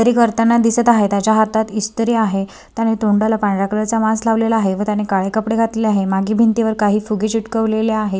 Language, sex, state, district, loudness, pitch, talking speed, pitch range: Marathi, female, Maharashtra, Sindhudurg, -16 LUFS, 220 Hz, 210 wpm, 210-225 Hz